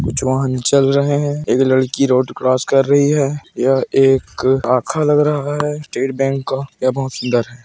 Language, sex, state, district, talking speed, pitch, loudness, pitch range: Hindi, male, Chhattisgarh, Kabirdham, 190 wpm, 135 Hz, -16 LUFS, 130-145 Hz